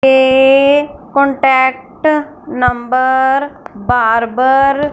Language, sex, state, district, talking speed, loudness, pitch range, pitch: Hindi, female, Punjab, Fazilka, 60 wpm, -12 LUFS, 260-285 Hz, 270 Hz